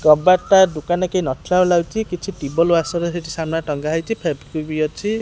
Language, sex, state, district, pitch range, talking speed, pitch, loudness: Odia, male, Odisha, Khordha, 155-185 Hz, 230 wpm, 170 Hz, -19 LUFS